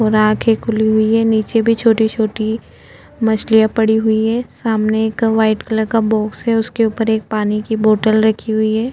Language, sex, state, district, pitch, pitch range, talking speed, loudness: Hindi, female, Uttarakhand, Tehri Garhwal, 220 Hz, 220-225 Hz, 195 wpm, -15 LUFS